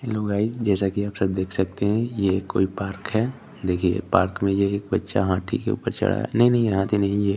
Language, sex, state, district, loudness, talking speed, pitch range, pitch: Hindi, male, Chandigarh, Chandigarh, -23 LUFS, 245 wpm, 95-110 Hz, 100 Hz